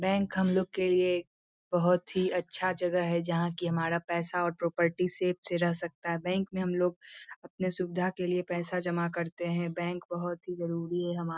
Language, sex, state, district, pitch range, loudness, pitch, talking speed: Hindi, female, Bihar, Lakhisarai, 170-180 Hz, -31 LUFS, 175 Hz, 210 wpm